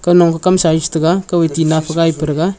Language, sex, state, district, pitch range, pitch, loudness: Wancho, male, Arunachal Pradesh, Longding, 160-175 Hz, 165 Hz, -14 LUFS